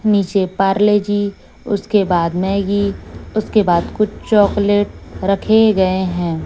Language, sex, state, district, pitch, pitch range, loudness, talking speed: Hindi, female, Chhattisgarh, Raipur, 200 Hz, 190-210 Hz, -16 LUFS, 120 wpm